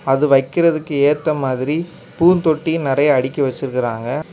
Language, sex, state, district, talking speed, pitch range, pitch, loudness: Tamil, male, Tamil Nadu, Kanyakumari, 110 wpm, 135-160 Hz, 145 Hz, -17 LUFS